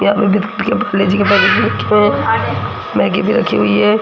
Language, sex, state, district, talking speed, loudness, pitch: Hindi, female, Rajasthan, Jaipur, 150 wpm, -14 LUFS, 200 Hz